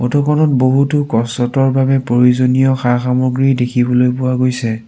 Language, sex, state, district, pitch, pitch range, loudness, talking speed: Assamese, male, Assam, Sonitpur, 125 Hz, 125-135 Hz, -14 LUFS, 110 wpm